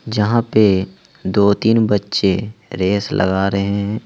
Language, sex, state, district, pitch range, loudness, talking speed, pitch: Hindi, male, Jharkhand, Ranchi, 100-110 Hz, -16 LUFS, 135 wpm, 100 Hz